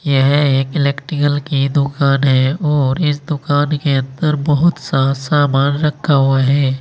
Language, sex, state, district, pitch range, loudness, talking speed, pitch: Hindi, male, Uttar Pradesh, Saharanpur, 135-150 Hz, -15 LUFS, 150 wpm, 140 Hz